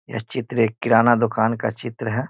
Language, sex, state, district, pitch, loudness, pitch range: Hindi, male, Bihar, East Champaran, 115 Hz, -20 LUFS, 110-120 Hz